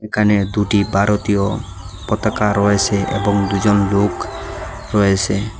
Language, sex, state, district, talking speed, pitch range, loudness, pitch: Bengali, male, Assam, Hailakandi, 95 wpm, 100-105 Hz, -17 LUFS, 100 Hz